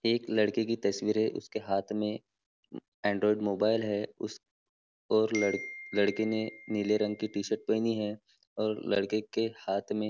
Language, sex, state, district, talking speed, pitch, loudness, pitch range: Hindi, male, Maharashtra, Nagpur, 170 wpm, 105 Hz, -31 LUFS, 105-110 Hz